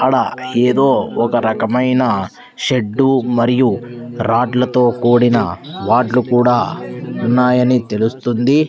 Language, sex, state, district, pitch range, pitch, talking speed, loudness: Telugu, male, Andhra Pradesh, Sri Satya Sai, 120-125 Hz, 125 Hz, 90 wpm, -15 LUFS